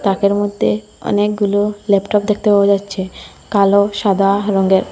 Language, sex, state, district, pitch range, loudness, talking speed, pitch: Bengali, female, Assam, Hailakandi, 195-205 Hz, -15 LUFS, 120 wpm, 200 Hz